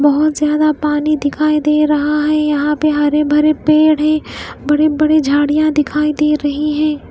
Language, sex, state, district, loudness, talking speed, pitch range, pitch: Hindi, female, Himachal Pradesh, Shimla, -14 LUFS, 170 wpm, 295-305 Hz, 300 Hz